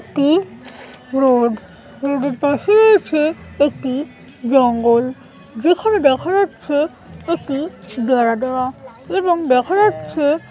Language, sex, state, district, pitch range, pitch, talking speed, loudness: Bengali, female, West Bengal, Malda, 255-335 Hz, 280 Hz, 95 wpm, -17 LUFS